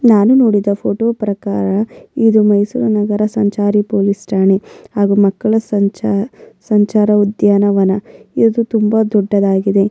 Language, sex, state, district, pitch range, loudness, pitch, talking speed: Kannada, female, Karnataka, Mysore, 200-220 Hz, -14 LUFS, 205 Hz, 110 wpm